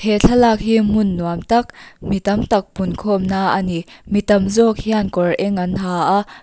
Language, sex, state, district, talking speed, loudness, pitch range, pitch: Mizo, female, Mizoram, Aizawl, 205 wpm, -17 LUFS, 190-215 Hz, 200 Hz